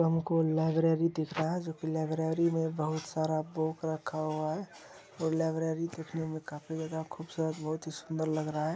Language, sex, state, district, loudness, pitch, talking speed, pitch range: Hindi, male, Bihar, Araria, -33 LUFS, 160 Hz, 150 wpm, 155-165 Hz